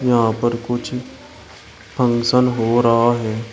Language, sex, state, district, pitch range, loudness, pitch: Hindi, male, Uttar Pradesh, Shamli, 115-120 Hz, -18 LUFS, 120 Hz